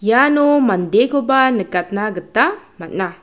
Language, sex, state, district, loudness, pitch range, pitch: Garo, female, Meghalaya, South Garo Hills, -16 LUFS, 200-280 Hz, 245 Hz